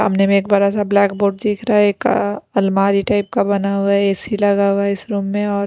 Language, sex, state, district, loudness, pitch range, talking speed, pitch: Hindi, female, Punjab, Pathankot, -16 LUFS, 200-205 Hz, 275 wpm, 200 Hz